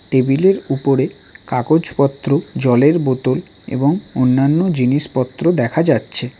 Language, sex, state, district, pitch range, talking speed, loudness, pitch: Bengali, male, West Bengal, Cooch Behar, 130-160 Hz, 105 wpm, -16 LUFS, 135 Hz